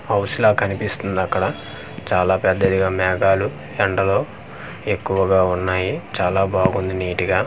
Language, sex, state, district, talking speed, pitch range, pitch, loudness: Telugu, male, Andhra Pradesh, Manyam, 120 wpm, 95-100 Hz, 95 Hz, -19 LUFS